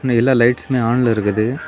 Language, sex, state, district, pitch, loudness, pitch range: Tamil, male, Tamil Nadu, Kanyakumari, 120 Hz, -16 LUFS, 115-125 Hz